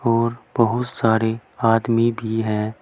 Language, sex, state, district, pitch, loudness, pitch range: Hindi, male, Uttar Pradesh, Saharanpur, 115 Hz, -20 LUFS, 110-115 Hz